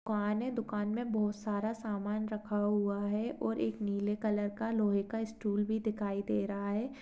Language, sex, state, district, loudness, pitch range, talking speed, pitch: Hindi, female, Uttarakhand, Uttarkashi, -34 LUFS, 205-220 Hz, 195 wpm, 210 Hz